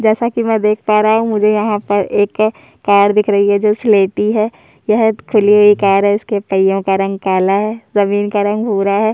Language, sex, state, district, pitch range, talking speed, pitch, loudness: Hindi, male, Chhattisgarh, Sukma, 200-215 Hz, 230 wpm, 210 Hz, -13 LUFS